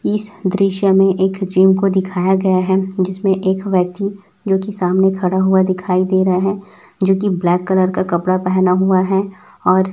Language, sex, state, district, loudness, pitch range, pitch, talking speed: Hindi, male, Chhattisgarh, Raipur, -16 LUFS, 185-195 Hz, 190 Hz, 175 wpm